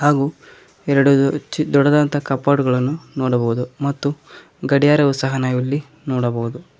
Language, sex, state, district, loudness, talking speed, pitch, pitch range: Kannada, male, Karnataka, Koppal, -18 LUFS, 105 wpm, 140 Hz, 130-145 Hz